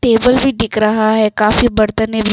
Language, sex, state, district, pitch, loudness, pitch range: Hindi, female, Arunachal Pradesh, Longding, 220 Hz, -13 LUFS, 215-230 Hz